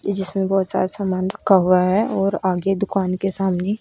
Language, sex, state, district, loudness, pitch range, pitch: Hindi, female, Haryana, Rohtak, -20 LUFS, 185-195 Hz, 195 Hz